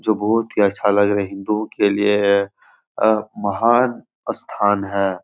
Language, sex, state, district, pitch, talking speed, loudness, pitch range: Hindi, male, Bihar, Jahanabad, 105 Hz, 160 wpm, -19 LUFS, 100-110 Hz